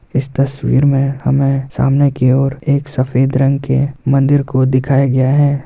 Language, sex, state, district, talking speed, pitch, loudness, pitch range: Hindi, male, Bihar, Samastipur, 170 wpm, 135 Hz, -14 LUFS, 130-140 Hz